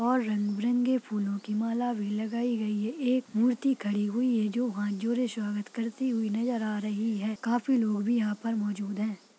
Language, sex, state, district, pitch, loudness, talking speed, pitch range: Hindi, female, Chhattisgarh, Rajnandgaon, 225 Hz, -30 LUFS, 205 wpm, 210-245 Hz